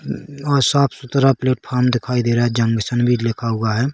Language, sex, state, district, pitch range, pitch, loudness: Hindi, male, Chhattisgarh, Bilaspur, 115-135 Hz, 125 Hz, -18 LUFS